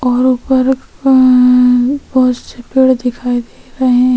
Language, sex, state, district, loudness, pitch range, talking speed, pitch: Hindi, female, Chhattisgarh, Sukma, -12 LUFS, 245-260 Hz, 160 wpm, 250 Hz